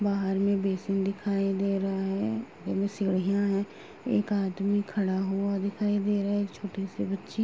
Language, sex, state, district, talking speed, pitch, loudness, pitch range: Hindi, female, Uttar Pradesh, Gorakhpur, 185 wpm, 195 Hz, -29 LUFS, 195-200 Hz